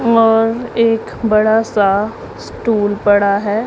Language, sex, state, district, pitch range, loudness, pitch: Hindi, male, Punjab, Pathankot, 205-230 Hz, -14 LUFS, 220 Hz